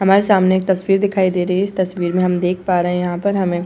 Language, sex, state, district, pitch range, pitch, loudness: Hindi, female, Uttar Pradesh, Etah, 180-195 Hz, 185 Hz, -17 LUFS